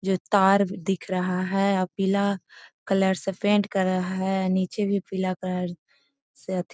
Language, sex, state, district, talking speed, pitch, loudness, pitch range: Magahi, female, Bihar, Gaya, 170 wpm, 190 Hz, -25 LUFS, 185-200 Hz